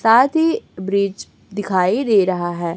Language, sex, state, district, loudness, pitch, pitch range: Hindi, female, Chhattisgarh, Raipur, -18 LUFS, 200 Hz, 185-235 Hz